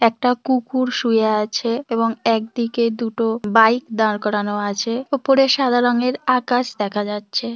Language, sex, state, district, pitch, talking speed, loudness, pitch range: Bengali, female, West Bengal, Dakshin Dinajpur, 230 Hz, 135 wpm, -19 LUFS, 220-250 Hz